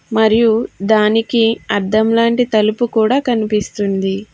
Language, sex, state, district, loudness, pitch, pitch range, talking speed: Telugu, female, Telangana, Hyderabad, -15 LUFS, 220 Hz, 210-230 Hz, 85 wpm